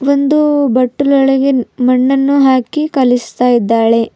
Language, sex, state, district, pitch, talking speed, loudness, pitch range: Kannada, female, Karnataka, Bidar, 265 Hz, 85 wpm, -12 LUFS, 250-280 Hz